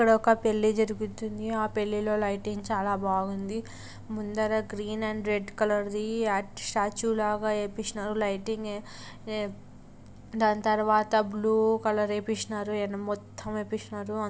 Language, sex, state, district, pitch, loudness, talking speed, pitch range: Telugu, female, Andhra Pradesh, Anantapur, 215 Hz, -29 LUFS, 110 wpm, 210-220 Hz